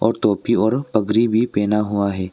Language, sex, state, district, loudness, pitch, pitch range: Hindi, male, Arunachal Pradesh, Longding, -19 LUFS, 105 Hz, 100-115 Hz